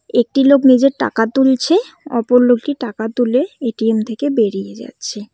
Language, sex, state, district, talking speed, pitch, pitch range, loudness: Bengali, female, West Bengal, Cooch Behar, 145 wpm, 245 Hz, 225-275 Hz, -15 LUFS